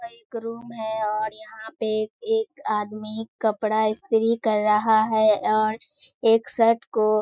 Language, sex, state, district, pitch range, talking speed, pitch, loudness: Hindi, female, Bihar, Kishanganj, 215-230 Hz, 150 wpm, 220 Hz, -23 LUFS